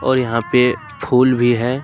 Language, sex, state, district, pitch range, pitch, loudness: Hindi, male, Jharkhand, Ranchi, 120-130 Hz, 125 Hz, -16 LUFS